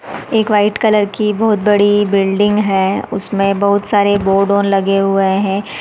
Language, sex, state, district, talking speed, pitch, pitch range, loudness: Hindi, female, Chhattisgarh, Raigarh, 155 wpm, 200 Hz, 195-210 Hz, -14 LUFS